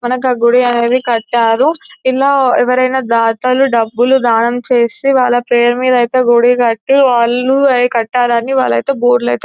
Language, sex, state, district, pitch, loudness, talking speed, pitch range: Telugu, female, Telangana, Nalgonda, 245 Hz, -12 LUFS, 145 wpm, 235-255 Hz